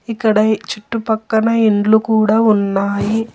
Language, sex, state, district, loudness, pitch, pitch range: Telugu, female, Telangana, Hyderabad, -15 LUFS, 220 Hz, 210-225 Hz